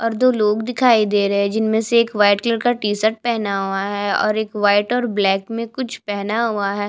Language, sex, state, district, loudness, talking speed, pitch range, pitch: Hindi, female, Chhattisgarh, Bastar, -18 LUFS, 245 wpm, 205-230 Hz, 215 Hz